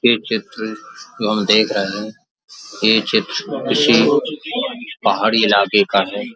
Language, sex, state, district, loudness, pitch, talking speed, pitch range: Hindi, male, Uttar Pradesh, Jalaun, -16 LUFS, 110 Hz, 130 wpm, 105-145 Hz